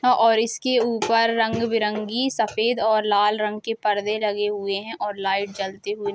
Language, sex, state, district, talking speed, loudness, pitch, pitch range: Hindi, female, Uttar Pradesh, Jalaun, 175 wpm, -22 LUFS, 220 Hz, 210-230 Hz